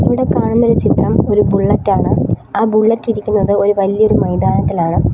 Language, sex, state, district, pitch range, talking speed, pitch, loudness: Malayalam, female, Kerala, Kollam, 200-220 Hz, 115 wpm, 215 Hz, -13 LUFS